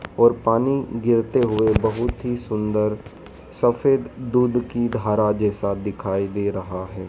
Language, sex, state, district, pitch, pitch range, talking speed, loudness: Hindi, male, Madhya Pradesh, Dhar, 110 Hz, 105-120 Hz, 135 wpm, -21 LUFS